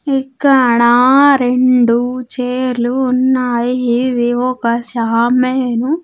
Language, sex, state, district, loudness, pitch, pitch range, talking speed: Telugu, female, Andhra Pradesh, Sri Satya Sai, -13 LUFS, 250 Hz, 240-255 Hz, 70 wpm